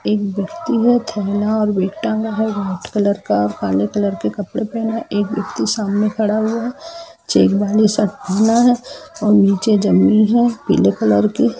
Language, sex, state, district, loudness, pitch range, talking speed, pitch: Hindi, female, Jharkhand, Jamtara, -17 LUFS, 200-225 Hz, 180 wpm, 210 Hz